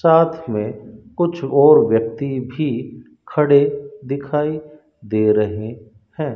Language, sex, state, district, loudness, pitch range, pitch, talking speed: Hindi, male, Rajasthan, Bikaner, -18 LUFS, 115-150 Hz, 140 Hz, 105 wpm